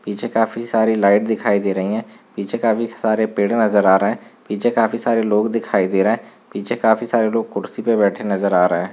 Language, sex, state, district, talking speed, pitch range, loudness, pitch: Hindi, male, Chhattisgarh, Korba, 240 wpm, 100-115 Hz, -18 LUFS, 110 Hz